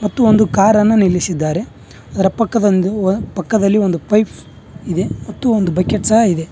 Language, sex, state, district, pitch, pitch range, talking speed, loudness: Kannada, male, Karnataka, Bangalore, 200 Hz, 180-215 Hz, 140 wpm, -15 LUFS